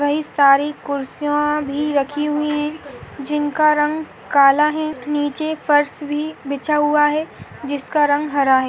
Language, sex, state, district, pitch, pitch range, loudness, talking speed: Hindi, female, Goa, North and South Goa, 295 Hz, 285-300 Hz, -18 LUFS, 150 wpm